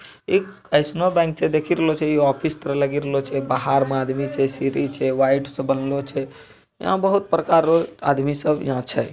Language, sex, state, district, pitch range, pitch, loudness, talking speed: Angika, male, Bihar, Bhagalpur, 135-160 Hz, 140 Hz, -21 LUFS, 215 wpm